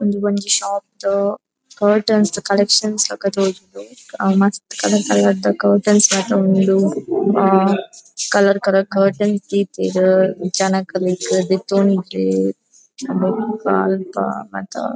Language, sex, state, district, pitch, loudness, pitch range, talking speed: Tulu, female, Karnataka, Dakshina Kannada, 195 Hz, -17 LUFS, 190-205 Hz, 100 wpm